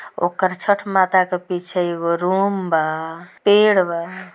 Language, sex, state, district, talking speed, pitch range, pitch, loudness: Bhojpuri, female, Bihar, Gopalganj, 140 wpm, 170-190 Hz, 180 Hz, -19 LUFS